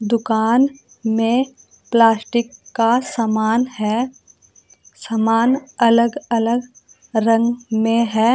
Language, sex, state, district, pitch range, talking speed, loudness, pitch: Hindi, female, Uttar Pradesh, Saharanpur, 225-245 Hz, 85 wpm, -18 LUFS, 230 Hz